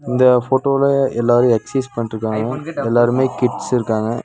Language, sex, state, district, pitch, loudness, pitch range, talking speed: Tamil, male, Tamil Nadu, Nilgiris, 125 Hz, -17 LUFS, 115-130 Hz, 115 wpm